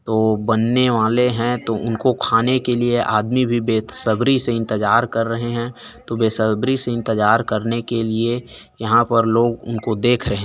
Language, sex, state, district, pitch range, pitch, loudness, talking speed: Chhattisgarhi, male, Chhattisgarh, Korba, 110-120 Hz, 115 Hz, -18 LUFS, 170 wpm